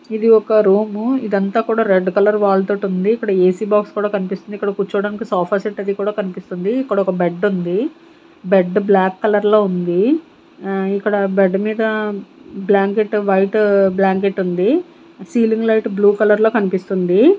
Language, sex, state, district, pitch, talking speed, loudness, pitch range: Telugu, female, Andhra Pradesh, Sri Satya Sai, 205 Hz, 155 wpm, -16 LUFS, 195-220 Hz